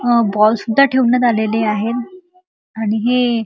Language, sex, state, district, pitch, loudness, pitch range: Marathi, male, Maharashtra, Chandrapur, 235 Hz, -15 LUFS, 220-250 Hz